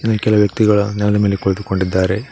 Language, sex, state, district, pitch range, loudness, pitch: Kannada, male, Karnataka, Koppal, 95-110 Hz, -16 LUFS, 105 Hz